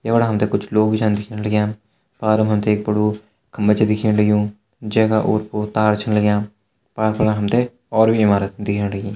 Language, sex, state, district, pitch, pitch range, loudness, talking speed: Hindi, male, Uttarakhand, Uttarkashi, 105 Hz, 105-110 Hz, -18 LUFS, 195 wpm